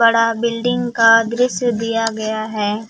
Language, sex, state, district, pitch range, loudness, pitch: Hindi, female, Jharkhand, Palamu, 220-235 Hz, -17 LUFS, 230 Hz